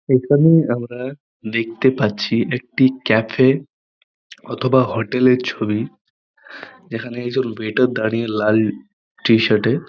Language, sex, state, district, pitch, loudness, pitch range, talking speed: Bengali, male, West Bengal, Purulia, 120 Hz, -18 LUFS, 110-130 Hz, 95 wpm